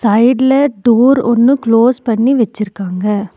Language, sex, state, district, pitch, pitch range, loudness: Tamil, female, Tamil Nadu, Nilgiris, 235 Hz, 210-255 Hz, -12 LUFS